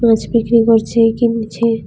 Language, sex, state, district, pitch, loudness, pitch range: Bengali, female, Tripura, West Tripura, 230 Hz, -14 LUFS, 225-230 Hz